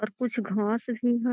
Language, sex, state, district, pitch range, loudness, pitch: Magahi, female, Bihar, Gaya, 215-245 Hz, -28 LUFS, 235 Hz